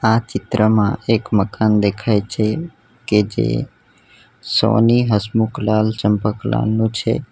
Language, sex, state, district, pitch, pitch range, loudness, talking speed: Gujarati, male, Gujarat, Valsad, 110 Hz, 105-120 Hz, -17 LUFS, 105 wpm